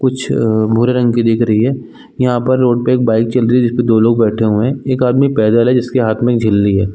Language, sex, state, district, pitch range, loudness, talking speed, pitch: Hindi, male, Chhattisgarh, Bilaspur, 110-125 Hz, -13 LUFS, 275 wpm, 120 Hz